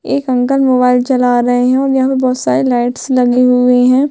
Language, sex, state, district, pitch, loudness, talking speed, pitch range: Hindi, female, Chhattisgarh, Sukma, 250 Hz, -12 LUFS, 220 wpm, 250-265 Hz